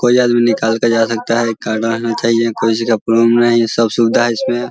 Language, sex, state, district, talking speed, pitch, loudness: Hindi, male, Bihar, Vaishali, 255 wpm, 115 Hz, -14 LUFS